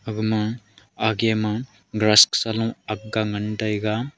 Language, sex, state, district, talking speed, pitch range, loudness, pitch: Wancho, male, Arunachal Pradesh, Longding, 160 wpm, 105-110 Hz, -21 LUFS, 110 Hz